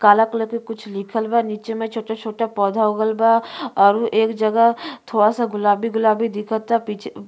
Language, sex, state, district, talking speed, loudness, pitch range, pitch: Bhojpuri, female, Uttar Pradesh, Ghazipur, 175 wpm, -19 LUFS, 210-230 Hz, 225 Hz